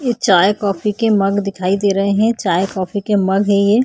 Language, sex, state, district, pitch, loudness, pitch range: Hindi, female, Maharashtra, Chandrapur, 200 Hz, -16 LUFS, 195-210 Hz